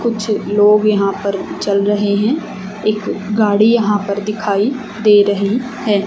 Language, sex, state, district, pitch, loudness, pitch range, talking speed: Hindi, female, Haryana, Charkhi Dadri, 210 Hz, -15 LUFS, 200-215 Hz, 150 wpm